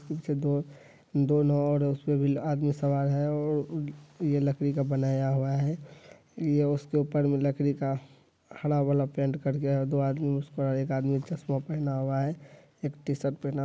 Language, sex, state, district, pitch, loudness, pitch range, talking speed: Hindi, male, Bihar, Saharsa, 140 Hz, -29 LUFS, 140-145 Hz, 185 wpm